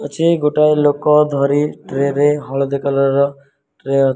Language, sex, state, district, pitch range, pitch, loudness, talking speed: Odia, male, Odisha, Malkangiri, 140-150 Hz, 140 Hz, -15 LUFS, 130 wpm